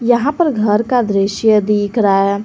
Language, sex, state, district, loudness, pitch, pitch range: Hindi, female, Jharkhand, Garhwa, -14 LUFS, 210 Hz, 205-240 Hz